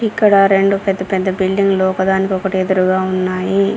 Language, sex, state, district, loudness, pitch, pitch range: Telugu, female, Telangana, Komaram Bheem, -15 LUFS, 190 Hz, 190-195 Hz